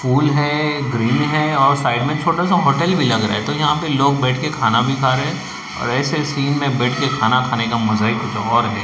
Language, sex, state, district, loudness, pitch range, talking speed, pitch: Hindi, male, Maharashtra, Mumbai Suburban, -17 LUFS, 120-150 Hz, 265 wpm, 135 Hz